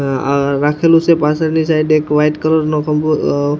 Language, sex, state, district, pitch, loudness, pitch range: Gujarati, male, Gujarat, Gandhinagar, 150 Hz, -14 LUFS, 145-160 Hz